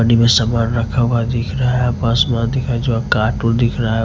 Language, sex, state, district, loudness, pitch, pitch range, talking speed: Hindi, male, Punjab, Kapurthala, -16 LUFS, 115 Hz, 115-120 Hz, 195 wpm